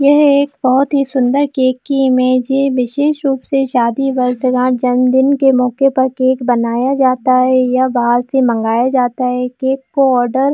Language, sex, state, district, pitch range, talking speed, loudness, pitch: Hindi, female, Jharkhand, Jamtara, 250-270 Hz, 180 wpm, -13 LUFS, 260 Hz